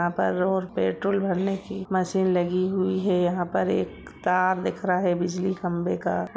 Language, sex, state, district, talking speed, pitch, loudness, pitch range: Hindi, female, Jharkhand, Jamtara, 190 wpm, 185 Hz, -25 LUFS, 175-190 Hz